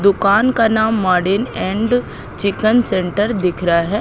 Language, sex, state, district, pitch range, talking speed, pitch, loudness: Hindi, female, Madhya Pradesh, Katni, 190-220 Hz, 150 wpm, 205 Hz, -16 LUFS